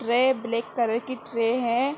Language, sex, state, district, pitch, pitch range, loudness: Hindi, female, Uttar Pradesh, Hamirpur, 235 Hz, 230-255 Hz, -25 LUFS